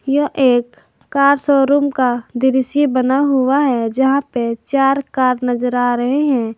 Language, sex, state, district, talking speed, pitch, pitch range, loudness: Hindi, female, Jharkhand, Garhwa, 155 wpm, 265 Hz, 245-280 Hz, -15 LUFS